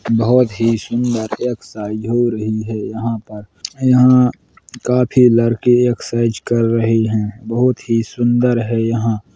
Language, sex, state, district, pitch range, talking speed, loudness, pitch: Hindi, male, Uttar Pradesh, Hamirpur, 110-120 Hz, 140 wpm, -16 LUFS, 115 Hz